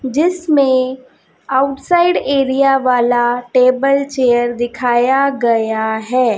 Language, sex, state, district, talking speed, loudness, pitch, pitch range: Hindi, female, Chhattisgarh, Raipur, 85 wpm, -14 LUFS, 255 Hz, 240-275 Hz